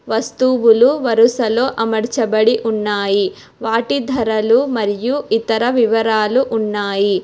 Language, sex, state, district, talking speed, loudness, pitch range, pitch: Telugu, female, Telangana, Hyderabad, 85 wpm, -16 LUFS, 215-245 Hz, 225 Hz